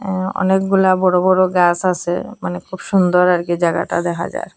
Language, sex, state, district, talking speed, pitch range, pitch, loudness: Bengali, female, Assam, Hailakandi, 185 wpm, 175-190 Hz, 180 Hz, -16 LUFS